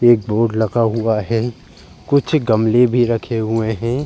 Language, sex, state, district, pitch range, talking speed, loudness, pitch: Hindi, male, Uttar Pradesh, Jalaun, 110-120 Hz, 165 wpm, -17 LUFS, 115 Hz